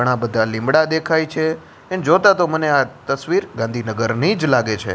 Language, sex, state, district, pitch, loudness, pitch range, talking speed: Gujarati, male, Gujarat, Gandhinagar, 140 Hz, -18 LUFS, 115-160 Hz, 180 wpm